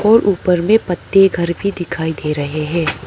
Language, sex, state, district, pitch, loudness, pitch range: Hindi, female, Arunachal Pradesh, Papum Pare, 175 Hz, -16 LUFS, 160-195 Hz